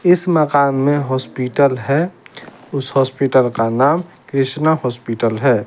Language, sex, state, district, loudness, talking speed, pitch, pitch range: Hindi, male, Bihar, West Champaran, -17 LUFS, 125 wpm, 135 Hz, 130-145 Hz